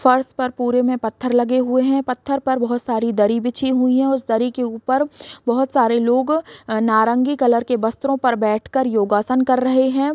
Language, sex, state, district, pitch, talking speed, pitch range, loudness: Hindi, female, Bihar, East Champaran, 250 Hz, 195 wpm, 235-260 Hz, -18 LUFS